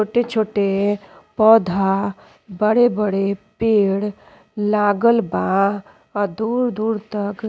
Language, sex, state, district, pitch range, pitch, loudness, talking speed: Bhojpuri, female, Uttar Pradesh, Ghazipur, 200-220 Hz, 210 Hz, -19 LUFS, 80 wpm